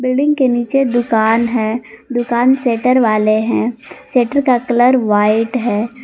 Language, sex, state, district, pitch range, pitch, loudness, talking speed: Hindi, female, Jharkhand, Garhwa, 225-255 Hz, 240 Hz, -14 LUFS, 140 wpm